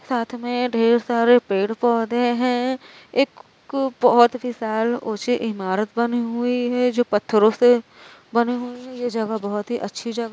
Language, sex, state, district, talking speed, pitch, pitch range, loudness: Hindi, female, Uttar Pradesh, Varanasi, 165 wpm, 240 Hz, 225-245 Hz, -21 LUFS